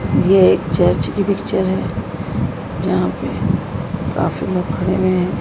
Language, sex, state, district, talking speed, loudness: Hindi, female, Madhya Pradesh, Dhar, 145 wpm, -18 LUFS